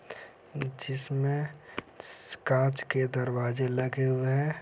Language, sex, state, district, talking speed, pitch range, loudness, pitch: Hindi, male, Bihar, Saran, 90 wpm, 130-140 Hz, -30 LUFS, 130 Hz